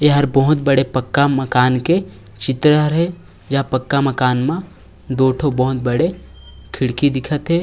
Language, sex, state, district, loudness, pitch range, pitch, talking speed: Chhattisgarhi, male, Chhattisgarh, Raigarh, -17 LUFS, 130-150 Hz, 135 Hz, 150 wpm